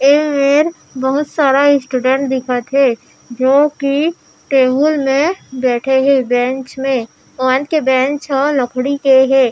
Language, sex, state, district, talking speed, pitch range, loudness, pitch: Chhattisgarhi, female, Chhattisgarh, Raigarh, 140 wpm, 260-285 Hz, -14 LUFS, 270 Hz